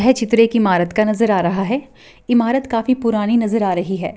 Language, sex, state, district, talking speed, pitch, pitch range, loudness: Hindi, female, Rajasthan, Churu, 215 wpm, 225 Hz, 195-235 Hz, -17 LUFS